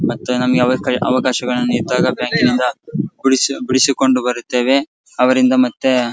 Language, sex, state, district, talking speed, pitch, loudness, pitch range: Kannada, male, Karnataka, Bellary, 105 wpm, 130 Hz, -16 LUFS, 125-130 Hz